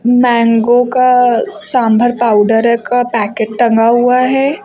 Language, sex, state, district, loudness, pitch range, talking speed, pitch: Hindi, female, Uttar Pradesh, Lucknow, -11 LUFS, 230-250 Hz, 115 wpm, 240 Hz